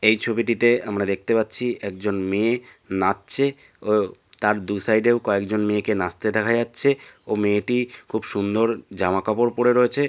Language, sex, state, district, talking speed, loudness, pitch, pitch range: Bengali, male, West Bengal, North 24 Parganas, 150 wpm, -22 LUFS, 110 Hz, 100-120 Hz